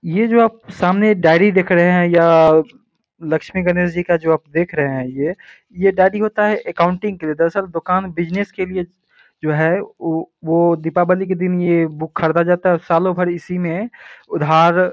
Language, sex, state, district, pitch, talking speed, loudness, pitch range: Hindi, male, Bihar, Samastipur, 175 Hz, 200 wpm, -16 LUFS, 165-190 Hz